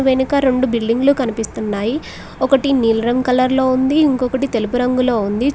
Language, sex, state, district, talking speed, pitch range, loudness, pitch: Telugu, female, Telangana, Mahabubabad, 150 wpm, 230-270 Hz, -16 LUFS, 255 Hz